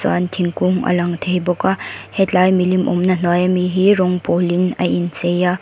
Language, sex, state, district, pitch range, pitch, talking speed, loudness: Mizo, female, Mizoram, Aizawl, 175-185 Hz, 180 Hz, 200 wpm, -17 LUFS